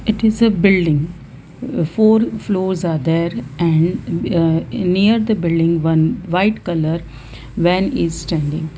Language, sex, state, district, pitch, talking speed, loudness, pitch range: English, female, Gujarat, Valsad, 170 Hz, 130 wpm, -17 LUFS, 160-195 Hz